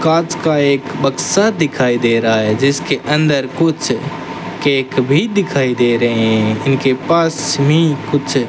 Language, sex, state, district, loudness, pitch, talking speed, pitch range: Hindi, male, Rajasthan, Bikaner, -15 LUFS, 140 Hz, 160 wpm, 125-155 Hz